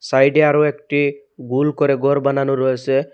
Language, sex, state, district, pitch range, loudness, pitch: Bengali, male, Assam, Hailakandi, 135-145 Hz, -17 LUFS, 140 Hz